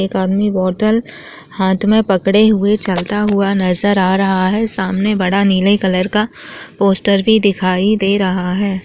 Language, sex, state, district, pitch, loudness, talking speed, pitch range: Chhattisgarhi, female, Chhattisgarh, Jashpur, 195 Hz, -14 LUFS, 165 wpm, 190-210 Hz